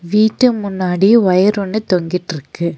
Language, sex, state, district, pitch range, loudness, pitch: Tamil, female, Tamil Nadu, Nilgiris, 180-215 Hz, -14 LUFS, 190 Hz